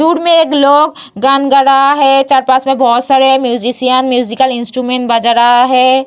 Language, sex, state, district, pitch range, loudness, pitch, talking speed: Hindi, female, Bihar, Vaishali, 250-275 Hz, -10 LUFS, 265 Hz, 190 wpm